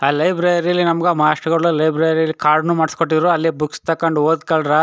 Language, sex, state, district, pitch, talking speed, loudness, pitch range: Kannada, male, Karnataka, Chamarajanagar, 160 Hz, 185 wpm, -16 LUFS, 155-170 Hz